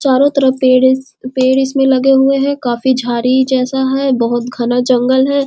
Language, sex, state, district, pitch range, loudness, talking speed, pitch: Hindi, female, Bihar, Muzaffarpur, 255-270 Hz, -13 LUFS, 175 wpm, 260 Hz